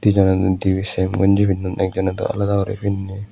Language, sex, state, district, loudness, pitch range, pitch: Chakma, male, Tripura, West Tripura, -19 LUFS, 95-100 Hz, 95 Hz